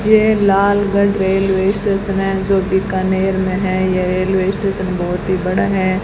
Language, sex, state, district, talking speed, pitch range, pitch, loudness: Hindi, female, Rajasthan, Bikaner, 160 wpm, 185-200 Hz, 190 Hz, -16 LUFS